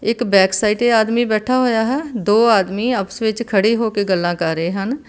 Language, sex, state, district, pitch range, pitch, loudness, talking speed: Punjabi, female, Karnataka, Bangalore, 195-235 Hz, 220 Hz, -17 LUFS, 200 wpm